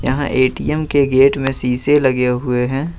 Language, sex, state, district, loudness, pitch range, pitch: Hindi, male, Jharkhand, Ranchi, -16 LUFS, 125-140 Hz, 135 Hz